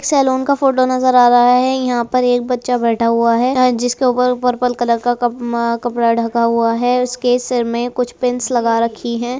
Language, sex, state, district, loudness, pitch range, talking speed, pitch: Hindi, female, Bihar, Araria, -15 LUFS, 235-250 Hz, 205 wpm, 245 Hz